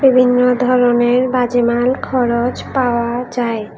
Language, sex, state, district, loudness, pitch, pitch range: Bengali, female, Tripura, West Tripura, -15 LUFS, 245 Hz, 240-255 Hz